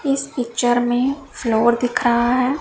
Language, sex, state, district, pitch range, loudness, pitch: Hindi, female, Punjab, Pathankot, 240-270 Hz, -19 LUFS, 245 Hz